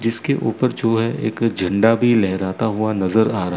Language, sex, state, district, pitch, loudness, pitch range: Hindi, male, Chandigarh, Chandigarh, 110 Hz, -18 LUFS, 105-115 Hz